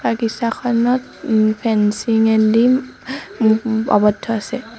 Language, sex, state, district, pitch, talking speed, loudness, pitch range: Assamese, female, Assam, Sonitpur, 225 Hz, 100 wpm, -17 LUFS, 220-245 Hz